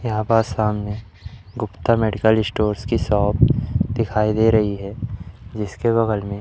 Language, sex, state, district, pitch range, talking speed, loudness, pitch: Hindi, male, Madhya Pradesh, Umaria, 105-115 Hz, 140 wpm, -20 LUFS, 110 Hz